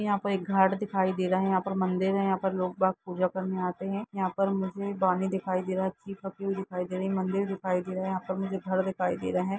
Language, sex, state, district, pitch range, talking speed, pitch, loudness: Hindi, female, Uttar Pradesh, Jalaun, 185-195 Hz, 290 wpm, 190 Hz, -29 LUFS